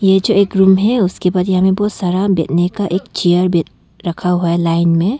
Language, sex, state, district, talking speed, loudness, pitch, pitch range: Hindi, female, Arunachal Pradesh, Longding, 205 wpm, -14 LUFS, 185 Hz, 175-195 Hz